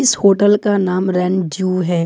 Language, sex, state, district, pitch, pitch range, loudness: Hindi, female, Jharkhand, Ranchi, 190 Hz, 180-200 Hz, -15 LUFS